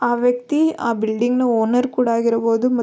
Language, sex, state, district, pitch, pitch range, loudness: Kannada, female, Karnataka, Belgaum, 240 Hz, 230-250 Hz, -18 LUFS